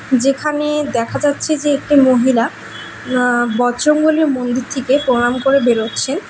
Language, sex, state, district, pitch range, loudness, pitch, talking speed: Bengali, female, West Bengal, Alipurduar, 245-295 Hz, -15 LUFS, 265 Hz, 125 wpm